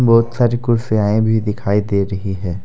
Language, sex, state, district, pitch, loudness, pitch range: Hindi, male, Jharkhand, Deoghar, 105 Hz, -17 LUFS, 100-115 Hz